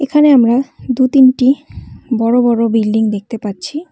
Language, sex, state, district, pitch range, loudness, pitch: Bengali, female, West Bengal, Cooch Behar, 230-270 Hz, -13 LUFS, 245 Hz